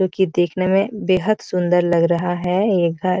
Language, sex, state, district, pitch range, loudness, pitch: Hindi, female, Bihar, Jahanabad, 175-190 Hz, -18 LUFS, 185 Hz